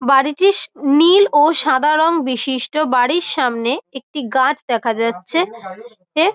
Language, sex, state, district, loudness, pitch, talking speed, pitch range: Bengali, female, West Bengal, Malda, -16 LUFS, 290 Hz, 125 wpm, 255-325 Hz